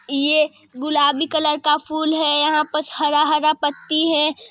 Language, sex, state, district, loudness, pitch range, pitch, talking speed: Hindi, male, Chhattisgarh, Sarguja, -18 LUFS, 295-310 Hz, 305 Hz, 160 wpm